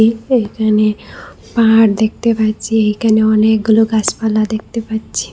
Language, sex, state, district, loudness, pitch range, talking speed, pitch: Bengali, female, Assam, Hailakandi, -14 LUFS, 215-225 Hz, 100 wpm, 220 Hz